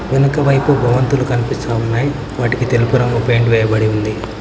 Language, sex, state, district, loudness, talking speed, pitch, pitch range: Telugu, male, Telangana, Mahabubabad, -15 LUFS, 135 wpm, 120 Hz, 115-135 Hz